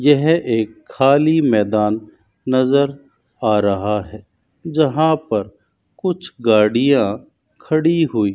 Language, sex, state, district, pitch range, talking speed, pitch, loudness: Hindi, male, Rajasthan, Bikaner, 105-155 Hz, 100 wpm, 130 Hz, -17 LUFS